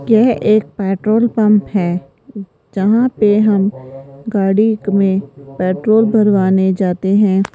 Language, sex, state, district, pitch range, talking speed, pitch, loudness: Hindi, female, Rajasthan, Jaipur, 190-215 Hz, 110 wpm, 200 Hz, -14 LUFS